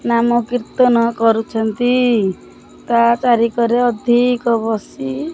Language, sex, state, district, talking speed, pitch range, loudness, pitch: Odia, male, Odisha, Khordha, 90 wpm, 225-245 Hz, -16 LUFS, 235 Hz